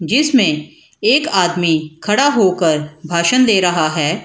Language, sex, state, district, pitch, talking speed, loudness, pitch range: Hindi, female, Bihar, Gaya, 175 Hz, 140 wpm, -15 LUFS, 155-210 Hz